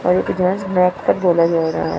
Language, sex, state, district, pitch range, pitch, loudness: Hindi, female, Chandigarh, Chandigarh, 165-185 Hz, 180 Hz, -17 LUFS